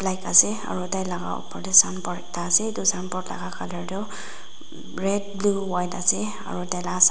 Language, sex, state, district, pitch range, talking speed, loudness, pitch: Nagamese, female, Nagaland, Dimapur, 180-200 Hz, 160 wpm, -23 LUFS, 190 Hz